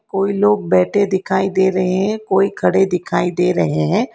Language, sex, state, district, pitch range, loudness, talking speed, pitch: Hindi, female, Karnataka, Bangalore, 170-195 Hz, -16 LUFS, 190 wpm, 190 Hz